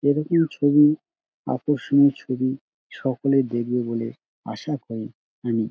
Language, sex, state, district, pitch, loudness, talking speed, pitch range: Bengali, male, West Bengal, Dakshin Dinajpur, 135 Hz, -23 LUFS, 105 wpm, 120-145 Hz